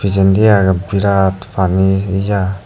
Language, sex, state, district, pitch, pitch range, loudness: Chakma, male, Tripura, Dhalai, 95 Hz, 95-100 Hz, -13 LUFS